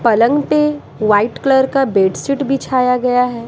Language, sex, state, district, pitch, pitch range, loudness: Hindi, female, Bihar, Patna, 250 Hz, 230-275 Hz, -15 LUFS